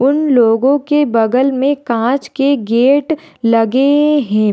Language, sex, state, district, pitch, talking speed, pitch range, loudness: Hindi, female, Maharashtra, Pune, 270 Hz, 135 wpm, 230-285 Hz, -13 LUFS